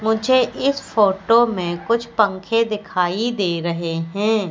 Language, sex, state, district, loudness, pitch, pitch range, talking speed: Hindi, female, Madhya Pradesh, Katni, -19 LUFS, 215 Hz, 180-230 Hz, 135 wpm